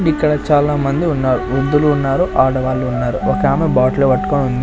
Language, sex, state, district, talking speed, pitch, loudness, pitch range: Telugu, male, Andhra Pradesh, Sri Satya Sai, 155 wpm, 135 Hz, -15 LUFS, 130-150 Hz